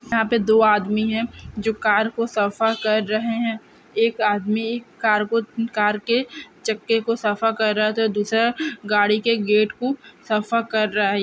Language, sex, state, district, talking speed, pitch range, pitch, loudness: Hindi, female, Bihar, Purnia, 190 wpm, 210-230 Hz, 220 Hz, -21 LUFS